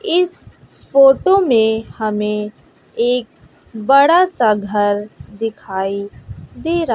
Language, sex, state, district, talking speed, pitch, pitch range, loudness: Hindi, female, Bihar, West Champaran, 95 wpm, 225 Hz, 210-280 Hz, -16 LUFS